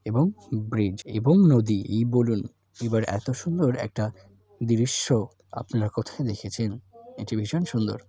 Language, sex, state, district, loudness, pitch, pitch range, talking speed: Bengali, male, West Bengal, Jalpaiguri, -25 LUFS, 115 Hz, 105-125 Hz, 125 wpm